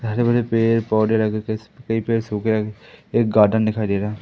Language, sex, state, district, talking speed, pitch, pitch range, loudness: Hindi, male, Madhya Pradesh, Katni, 215 wpm, 110 Hz, 110-115 Hz, -20 LUFS